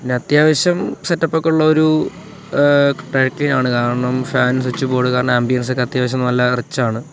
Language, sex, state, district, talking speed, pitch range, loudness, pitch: Malayalam, male, Kerala, Kollam, 150 wpm, 125-155 Hz, -16 LUFS, 130 Hz